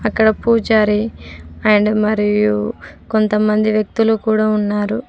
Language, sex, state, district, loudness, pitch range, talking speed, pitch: Telugu, female, Telangana, Mahabubabad, -16 LUFS, 210-220 Hz, 95 wpm, 215 Hz